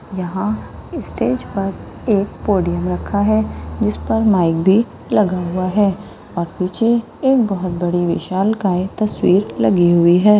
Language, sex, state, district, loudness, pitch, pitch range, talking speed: Hindi, female, Rajasthan, Churu, -17 LUFS, 195 Hz, 180-210 Hz, 140 wpm